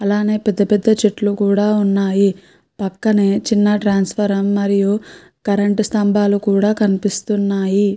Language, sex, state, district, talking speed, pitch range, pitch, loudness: Telugu, female, Andhra Pradesh, Chittoor, 100 wpm, 200-210 Hz, 205 Hz, -16 LUFS